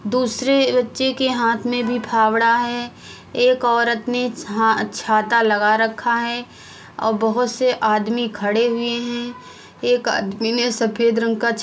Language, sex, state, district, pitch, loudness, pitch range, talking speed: Hindi, female, Uttar Pradesh, Hamirpur, 235 Hz, -19 LUFS, 225-245 Hz, 150 wpm